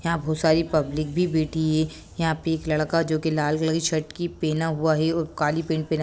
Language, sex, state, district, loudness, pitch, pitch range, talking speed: Hindi, female, Bihar, Sitamarhi, -24 LUFS, 160 Hz, 155-165 Hz, 260 wpm